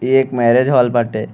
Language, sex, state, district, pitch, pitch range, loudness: Bhojpuri, male, Uttar Pradesh, Gorakhpur, 125 Hz, 120-130 Hz, -14 LUFS